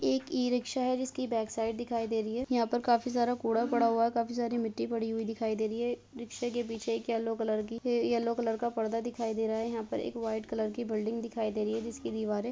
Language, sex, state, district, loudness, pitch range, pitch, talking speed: Hindi, female, Uttar Pradesh, Hamirpur, -32 LUFS, 225-240 Hz, 230 Hz, 265 wpm